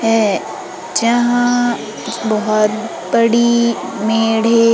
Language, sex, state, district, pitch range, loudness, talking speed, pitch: Hindi, female, Madhya Pradesh, Umaria, 225-235 Hz, -15 LUFS, 75 wpm, 230 Hz